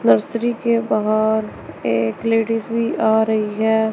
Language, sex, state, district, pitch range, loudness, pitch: Hindi, male, Chandigarh, Chandigarh, 215-225 Hz, -19 LUFS, 220 Hz